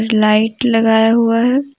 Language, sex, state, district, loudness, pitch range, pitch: Hindi, female, Jharkhand, Deoghar, -13 LUFS, 220-240 Hz, 225 Hz